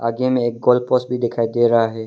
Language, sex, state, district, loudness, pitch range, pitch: Hindi, male, Arunachal Pradesh, Longding, -18 LUFS, 115-125 Hz, 120 Hz